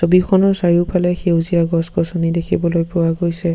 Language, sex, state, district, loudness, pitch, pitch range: Assamese, male, Assam, Sonitpur, -16 LUFS, 170 Hz, 170-180 Hz